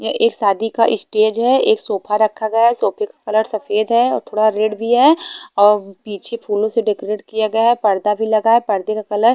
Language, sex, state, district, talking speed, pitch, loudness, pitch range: Hindi, female, Haryana, Charkhi Dadri, 235 wpm, 220 Hz, -16 LUFS, 210-235 Hz